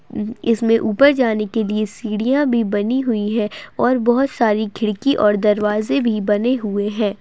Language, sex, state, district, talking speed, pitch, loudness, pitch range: Hindi, female, Uttar Pradesh, Hamirpur, 165 wpm, 220 Hz, -18 LUFS, 210-245 Hz